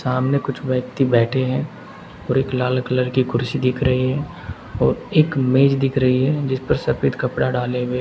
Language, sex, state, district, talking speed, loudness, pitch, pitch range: Hindi, male, Uttar Pradesh, Saharanpur, 195 wpm, -19 LUFS, 130 Hz, 125-135 Hz